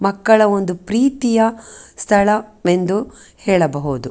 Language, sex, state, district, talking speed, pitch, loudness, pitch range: Kannada, female, Karnataka, Dakshina Kannada, 90 wpm, 205 Hz, -16 LUFS, 180-225 Hz